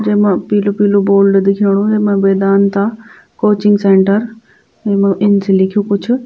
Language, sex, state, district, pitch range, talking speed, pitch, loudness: Garhwali, female, Uttarakhand, Tehri Garhwal, 195-210 Hz, 135 wpm, 200 Hz, -12 LUFS